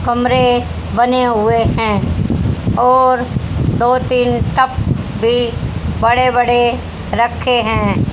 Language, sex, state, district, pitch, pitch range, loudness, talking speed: Hindi, female, Haryana, Jhajjar, 245 Hz, 240-250 Hz, -14 LUFS, 95 wpm